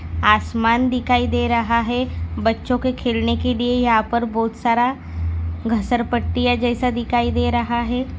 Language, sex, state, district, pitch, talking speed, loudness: Hindi, female, Maharashtra, Dhule, 235 Hz, 155 wpm, -19 LUFS